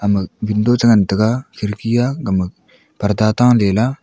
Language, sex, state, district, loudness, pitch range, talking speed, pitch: Wancho, male, Arunachal Pradesh, Longding, -16 LUFS, 105-120 Hz, 180 wpm, 110 Hz